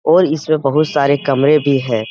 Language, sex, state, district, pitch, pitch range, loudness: Hindi, male, Bihar, Jamui, 140 Hz, 135-155 Hz, -14 LUFS